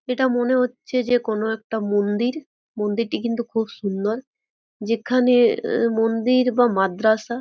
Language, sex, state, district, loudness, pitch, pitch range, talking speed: Bengali, female, West Bengal, Jhargram, -21 LUFS, 235 Hz, 220-250 Hz, 130 wpm